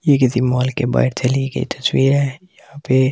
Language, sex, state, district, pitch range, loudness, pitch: Hindi, male, Delhi, New Delhi, 130-140 Hz, -17 LUFS, 135 Hz